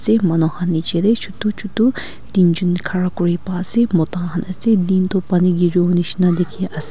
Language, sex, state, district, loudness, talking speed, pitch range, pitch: Nagamese, female, Nagaland, Kohima, -17 LUFS, 210 wpm, 175-190 Hz, 180 Hz